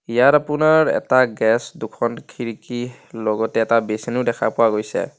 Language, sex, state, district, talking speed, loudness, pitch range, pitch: Assamese, male, Assam, Kamrup Metropolitan, 150 wpm, -19 LUFS, 110-125 Hz, 115 Hz